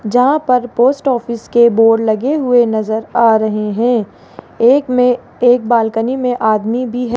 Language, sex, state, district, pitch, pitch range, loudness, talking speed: Hindi, female, Rajasthan, Jaipur, 240 Hz, 225-250 Hz, -13 LUFS, 165 wpm